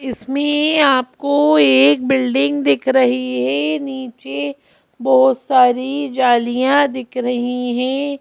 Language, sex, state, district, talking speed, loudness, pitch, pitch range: Hindi, female, Madhya Pradesh, Bhopal, 100 wpm, -16 LUFS, 255 Hz, 225-270 Hz